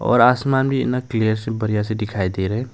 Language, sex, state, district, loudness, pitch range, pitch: Hindi, male, Arunachal Pradesh, Longding, -20 LUFS, 105-125 Hz, 110 Hz